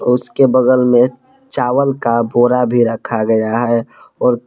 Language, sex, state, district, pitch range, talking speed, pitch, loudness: Hindi, male, Jharkhand, Palamu, 115-130 Hz, 145 wpm, 120 Hz, -14 LUFS